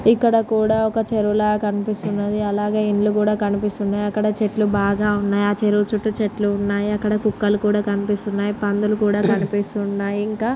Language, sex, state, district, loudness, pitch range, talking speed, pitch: Telugu, female, Andhra Pradesh, Srikakulam, -20 LUFS, 205-215 Hz, 150 wpm, 210 Hz